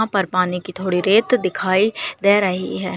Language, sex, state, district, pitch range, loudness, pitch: Hindi, female, Uttarakhand, Uttarkashi, 185-205 Hz, -18 LUFS, 190 Hz